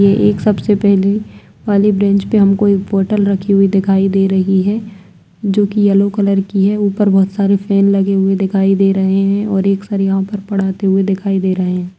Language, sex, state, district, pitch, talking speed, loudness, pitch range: Kumaoni, female, Uttarakhand, Tehri Garhwal, 195 Hz, 215 wpm, -13 LUFS, 195-200 Hz